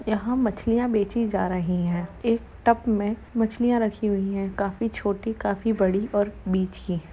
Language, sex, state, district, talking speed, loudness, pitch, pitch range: Hindi, female, Uttar Pradesh, Jalaun, 170 wpm, -25 LUFS, 210 Hz, 195-230 Hz